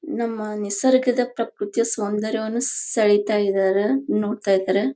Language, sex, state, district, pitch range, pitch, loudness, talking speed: Kannada, female, Karnataka, Bijapur, 205-235 Hz, 215 Hz, -21 LUFS, 95 wpm